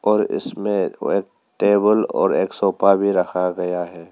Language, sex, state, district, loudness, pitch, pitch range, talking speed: Hindi, male, Arunachal Pradesh, Papum Pare, -19 LUFS, 100 Hz, 90-100 Hz, 130 wpm